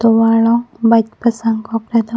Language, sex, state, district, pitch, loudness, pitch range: Karbi, female, Assam, Karbi Anglong, 230 Hz, -14 LUFS, 225-235 Hz